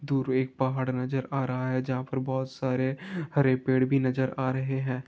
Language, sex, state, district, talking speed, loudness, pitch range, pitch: Hindi, male, Bihar, Gopalganj, 215 wpm, -28 LUFS, 130-135 Hz, 130 Hz